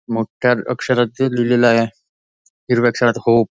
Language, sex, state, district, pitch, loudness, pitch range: Marathi, male, Maharashtra, Nagpur, 120 Hz, -17 LUFS, 115-125 Hz